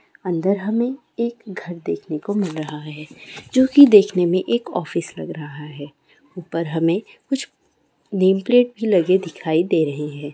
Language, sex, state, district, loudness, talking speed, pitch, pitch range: Hindi, female, West Bengal, North 24 Parganas, -19 LUFS, 170 wpm, 180 Hz, 155-210 Hz